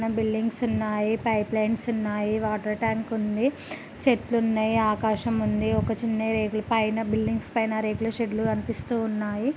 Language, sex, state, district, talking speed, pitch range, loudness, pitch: Telugu, female, Andhra Pradesh, Srikakulam, 125 wpm, 215-225 Hz, -26 LUFS, 220 Hz